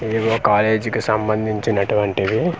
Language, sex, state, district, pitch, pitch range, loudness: Telugu, male, Andhra Pradesh, Manyam, 110 Hz, 105-110 Hz, -19 LUFS